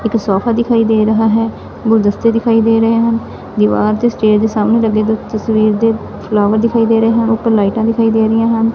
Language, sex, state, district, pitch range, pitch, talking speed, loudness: Punjabi, female, Punjab, Fazilka, 215-230 Hz, 225 Hz, 210 wpm, -13 LUFS